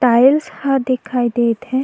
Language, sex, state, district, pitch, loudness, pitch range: Chhattisgarhi, female, Chhattisgarh, Jashpur, 255 Hz, -16 LUFS, 240-265 Hz